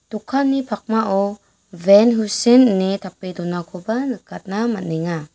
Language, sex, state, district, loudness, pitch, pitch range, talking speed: Garo, female, Meghalaya, West Garo Hills, -18 LUFS, 205 Hz, 185-230 Hz, 100 wpm